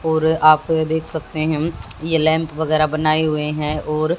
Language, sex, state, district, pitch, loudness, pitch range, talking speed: Hindi, female, Haryana, Jhajjar, 155 Hz, -18 LUFS, 155-160 Hz, 170 wpm